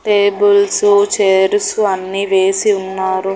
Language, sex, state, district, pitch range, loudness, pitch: Telugu, female, Andhra Pradesh, Annamaya, 190-215 Hz, -13 LUFS, 200 Hz